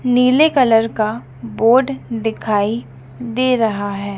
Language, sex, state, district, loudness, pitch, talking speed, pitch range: Hindi, female, Madhya Pradesh, Dhar, -16 LUFS, 225 Hz, 115 wpm, 200-250 Hz